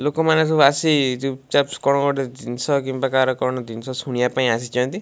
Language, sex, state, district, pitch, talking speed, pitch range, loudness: Odia, male, Odisha, Malkangiri, 135 Hz, 180 wpm, 125-140 Hz, -20 LUFS